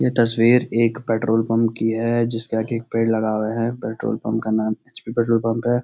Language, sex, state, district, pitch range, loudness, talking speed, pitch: Hindi, male, Uttarakhand, Uttarkashi, 110-115 Hz, -21 LUFS, 235 wpm, 115 Hz